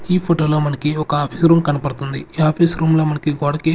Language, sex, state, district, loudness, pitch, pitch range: Telugu, male, Andhra Pradesh, Sri Satya Sai, -17 LUFS, 155 Hz, 145-165 Hz